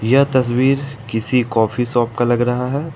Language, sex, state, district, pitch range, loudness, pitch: Hindi, male, Jharkhand, Ranchi, 120-135 Hz, -17 LUFS, 125 Hz